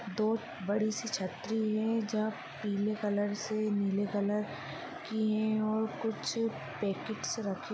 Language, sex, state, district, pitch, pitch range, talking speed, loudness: Hindi, female, Uttar Pradesh, Deoria, 215 Hz, 205-220 Hz, 145 wpm, -34 LUFS